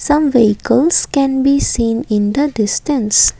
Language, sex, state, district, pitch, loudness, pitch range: English, female, Assam, Kamrup Metropolitan, 265 Hz, -14 LUFS, 220-285 Hz